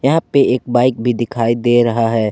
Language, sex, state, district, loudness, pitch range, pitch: Hindi, male, Jharkhand, Ranchi, -15 LUFS, 115-125 Hz, 120 Hz